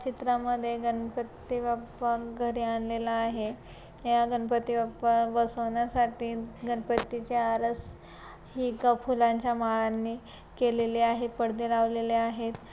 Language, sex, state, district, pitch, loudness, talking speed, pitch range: Marathi, female, Maharashtra, Pune, 235 Hz, -29 LUFS, 105 wpm, 230-240 Hz